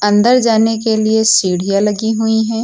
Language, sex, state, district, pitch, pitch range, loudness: Hindi, female, Uttar Pradesh, Lucknow, 220 Hz, 205-225 Hz, -13 LUFS